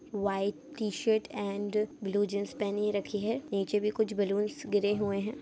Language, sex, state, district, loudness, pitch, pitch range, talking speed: Hindi, female, Jharkhand, Sahebganj, -32 LUFS, 205 Hz, 200-215 Hz, 175 wpm